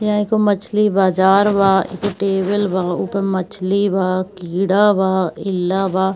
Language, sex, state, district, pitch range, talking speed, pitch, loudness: Hindi, female, Bihar, Kishanganj, 185-205 Hz, 145 wpm, 195 Hz, -17 LUFS